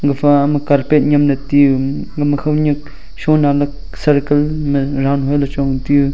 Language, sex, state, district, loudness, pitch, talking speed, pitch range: Wancho, male, Arunachal Pradesh, Longding, -15 LUFS, 145 Hz, 145 wpm, 140-145 Hz